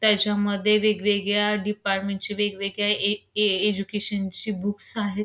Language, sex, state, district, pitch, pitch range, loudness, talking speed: Marathi, female, Maharashtra, Pune, 205 Hz, 200-210 Hz, -24 LUFS, 105 wpm